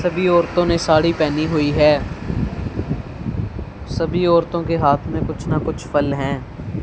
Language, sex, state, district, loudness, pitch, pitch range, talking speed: Hindi, female, Punjab, Fazilka, -19 LUFS, 155 Hz, 145-170 Hz, 150 wpm